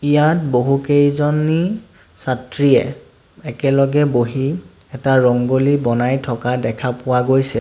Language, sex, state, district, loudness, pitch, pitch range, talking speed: Assamese, male, Assam, Sonitpur, -17 LUFS, 135 Hz, 125-145 Hz, 95 wpm